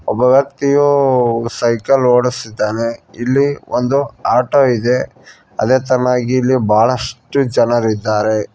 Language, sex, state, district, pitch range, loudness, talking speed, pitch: Kannada, male, Karnataka, Koppal, 115-135 Hz, -14 LUFS, 90 wpm, 125 Hz